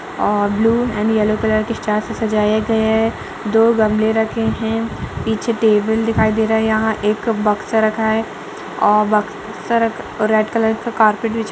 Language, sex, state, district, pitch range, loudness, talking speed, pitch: Hindi, female, Uttar Pradesh, Budaun, 215-225 Hz, -17 LUFS, 180 wpm, 220 Hz